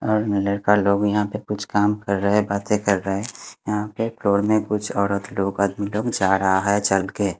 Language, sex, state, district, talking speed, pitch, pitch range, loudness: Hindi, male, Haryana, Rohtak, 205 wpm, 100 Hz, 100-105 Hz, -21 LUFS